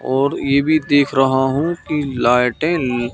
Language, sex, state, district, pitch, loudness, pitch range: Hindi, male, Madhya Pradesh, Katni, 135 Hz, -17 LUFS, 130-150 Hz